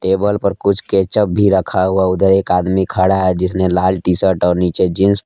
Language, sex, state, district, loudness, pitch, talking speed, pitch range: Hindi, male, Jharkhand, Palamu, -15 LUFS, 95 Hz, 230 wpm, 90-95 Hz